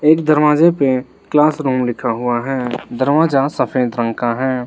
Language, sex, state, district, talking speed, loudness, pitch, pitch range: Hindi, male, Arunachal Pradesh, Lower Dibang Valley, 155 wpm, -16 LUFS, 130 Hz, 120-150 Hz